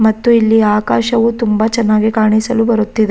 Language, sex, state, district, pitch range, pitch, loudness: Kannada, female, Karnataka, Raichur, 215-230 Hz, 220 Hz, -12 LUFS